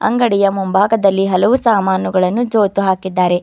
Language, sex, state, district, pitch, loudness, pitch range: Kannada, female, Karnataka, Bidar, 195 Hz, -14 LUFS, 190-220 Hz